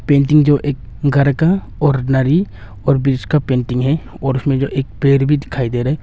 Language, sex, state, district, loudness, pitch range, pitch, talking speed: Hindi, male, Arunachal Pradesh, Longding, -16 LUFS, 130-145 Hz, 135 Hz, 240 wpm